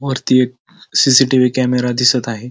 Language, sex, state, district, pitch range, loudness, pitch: Marathi, male, Maharashtra, Pune, 125-135 Hz, -14 LUFS, 130 Hz